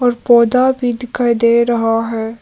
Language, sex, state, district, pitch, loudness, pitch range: Hindi, female, Arunachal Pradesh, Papum Pare, 235 Hz, -14 LUFS, 230-245 Hz